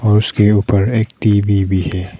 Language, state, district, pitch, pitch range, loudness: Hindi, Arunachal Pradesh, Papum Pare, 105 Hz, 95-105 Hz, -14 LUFS